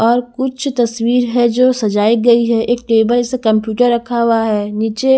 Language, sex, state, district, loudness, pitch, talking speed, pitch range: Hindi, female, Haryana, Charkhi Dadri, -14 LUFS, 235 Hz, 185 wpm, 225-245 Hz